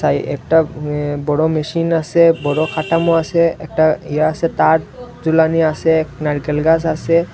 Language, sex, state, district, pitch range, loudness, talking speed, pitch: Bengali, male, Tripura, Unakoti, 150-165 Hz, -16 LUFS, 155 wpm, 160 Hz